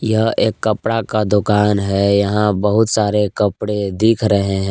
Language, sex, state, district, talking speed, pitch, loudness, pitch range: Hindi, male, Jharkhand, Palamu, 165 wpm, 105 Hz, -16 LUFS, 100-110 Hz